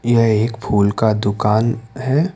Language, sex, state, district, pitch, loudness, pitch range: Hindi, male, Karnataka, Bangalore, 115 Hz, -17 LUFS, 105-120 Hz